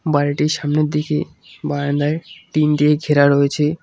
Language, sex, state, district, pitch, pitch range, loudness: Bengali, male, West Bengal, Cooch Behar, 150 Hz, 145-150 Hz, -18 LUFS